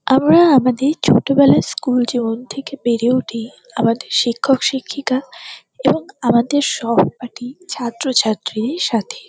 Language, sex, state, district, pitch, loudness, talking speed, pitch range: Bengali, female, West Bengal, North 24 Parganas, 255 Hz, -16 LUFS, 110 wpm, 235-280 Hz